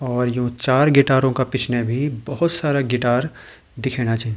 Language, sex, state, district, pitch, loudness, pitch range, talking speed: Garhwali, male, Uttarakhand, Tehri Garhwal, 130 Hz, -19 LUFS, 120-140 Hz, 165 wpm